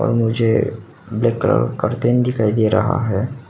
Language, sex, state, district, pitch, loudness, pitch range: Hindi, male, Arunachal Pradesh, Papum Pare, 115 Hz, -18 LUFS, 110-125 Hz